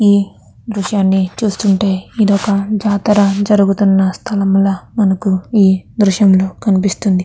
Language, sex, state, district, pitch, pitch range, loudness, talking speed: Telugu, female, Andhra Pradesh, Krishna, 200 Hz, 190-205 Hz, -14 LUFS, 110 wpm